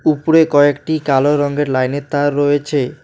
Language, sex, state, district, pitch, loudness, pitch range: Bengali, male, West Bengal, Alipurduar, 145 Hz, -15 LUFS, 145-150 Hz